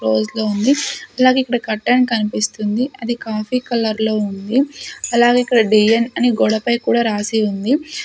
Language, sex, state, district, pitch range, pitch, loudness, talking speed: Telugu, female, Andhra Pradesh, Sri Satya Sai, 215-250 Hz, 235 Hz, -17 LUFS, 150 wpm